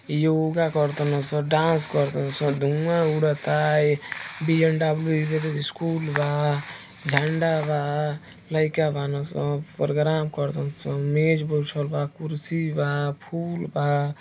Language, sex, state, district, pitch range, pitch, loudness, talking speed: Hindi, male, Uttar Pradesh, Deoria, 145-160 Hz, 150 Hz, -24 LUFS, 105 wpm